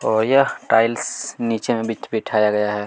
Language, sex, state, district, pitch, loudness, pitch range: Hindi, male, Chhattisgarh, Kabirdham, 115 Hz, -19 LUFS, 105-120 Hz